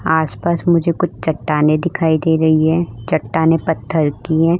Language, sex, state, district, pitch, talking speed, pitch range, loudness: Hindi, female, Uttar Pradesh, Budaun, 160 Hz, 155 wpm, 155-170 Hz, -16 LUFS